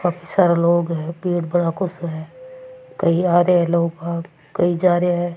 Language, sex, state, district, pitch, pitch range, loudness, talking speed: Rajasthani, female, Rajasthan, Churu, 175 Hz, 170-180 Hz, -19 LUFS, 180 wpm